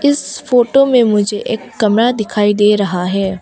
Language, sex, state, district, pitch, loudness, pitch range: Hindi, female, Arunachal Pradesh, Longding, 215 Hz, -13 LUFS, 205-245 Hz